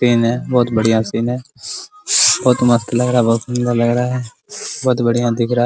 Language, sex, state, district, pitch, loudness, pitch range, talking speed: Hindi, male, Bihar, Araria, 120 Hz, -16 LUFS, 120-125 Hz, 235 wpm